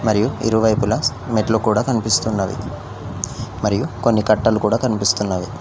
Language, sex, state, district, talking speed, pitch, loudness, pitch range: Telugu, male, Telangana, Mahabubabad, 105 wpm, 110 Hz, -19 LUFS, 105-115 Hz